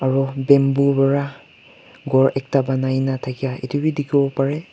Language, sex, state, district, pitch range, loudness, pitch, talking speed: Nagamese, male, Nagaland, Kohima, 135-140 Hz, -19 LUFS, 135 Hz, 150 wpm